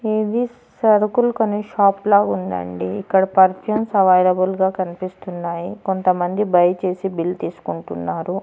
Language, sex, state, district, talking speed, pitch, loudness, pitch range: Telugu, female, Andhra Pradesh, Annamaya, 100 wpm, 190 Hz, -19 LUFS, 175-210 Hz